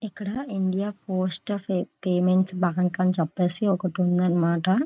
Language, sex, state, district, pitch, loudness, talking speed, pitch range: Telugu, female, Andhra Pradesh, Visakhapatnam, 185 Hz, -24 LUFS, 125 wpm, 180-195 Hz